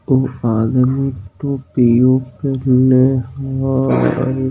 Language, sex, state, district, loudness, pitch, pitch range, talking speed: Hindi, male, Bihar, Samastipur, -16 LUFS, 130 Hz, 125-135 Hz, 65 wpm